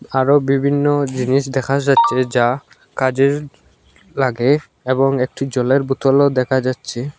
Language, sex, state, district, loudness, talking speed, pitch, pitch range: Bengali, male, Assam, Hailakandi, -17 LUFS, 115 wpm, 135 Hz, 130-140 Hz